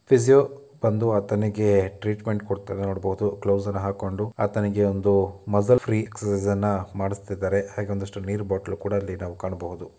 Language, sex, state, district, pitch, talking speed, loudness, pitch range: Kannada, male, Karnataka, Dakshina Kannada, 100 Hz, 130 wpm, -24 LUFS, 100-105 Hz